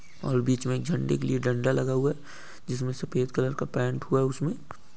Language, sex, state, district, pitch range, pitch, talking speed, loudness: Hindi, male, Bihar, Supaul, 125-135 Hz, 130 Hz, 240 wpm, -28 LUFS